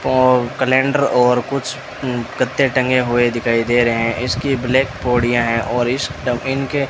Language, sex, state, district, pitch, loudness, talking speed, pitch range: Hindi, male, Rajasthan, Bikaner, 125 Hz, -17 LUFS, 165 wpm, 120-130 Hz